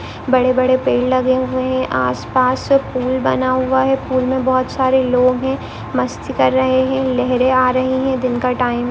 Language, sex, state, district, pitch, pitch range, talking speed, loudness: Hindi, female, Maharashtra, Pune, 255 Hz, 255-260 Hz, 195 wpm, -16 LUFS